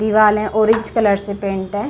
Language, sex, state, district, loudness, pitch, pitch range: Hindi, female, Jharkhand, Sahebganj, -17 LUFS, 210 Hz, 200-215 Hz